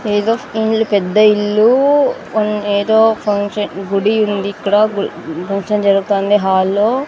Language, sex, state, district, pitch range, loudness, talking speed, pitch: Telugu, female, Andhra Pradesh, Sri Satya Sai, 200-220 Hz, -14 LUFS, 110 wpm, 210 Hz